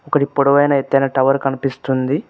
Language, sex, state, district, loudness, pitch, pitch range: Telugu, male, Telangana, Mahabubabad, -16 LUFS, 135 Hz, 135-140 Hz